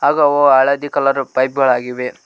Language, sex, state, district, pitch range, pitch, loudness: Kannada, male, Karnataka, Koppal, 130-145 Hz, 135 Hz, -14 LUFS